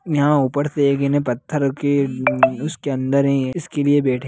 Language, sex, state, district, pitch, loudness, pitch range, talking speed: Hindi, male, Bihar, Sitamarhi, 140 Hz, -19 LUFS, 135-145 Hz, 180 wpm